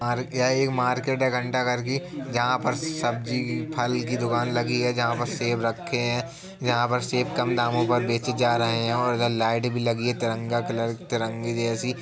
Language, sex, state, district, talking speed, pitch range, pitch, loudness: Hindi, male, Uttar Pradesh, Jalaun, 200 wpm, 120-125 Hz, 120 Hz, -25 LUFS